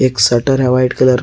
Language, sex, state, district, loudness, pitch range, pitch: Hindi, male, Jharkhand, Garhwa, -13 LUFS, 125-130 Hz, 130 Hz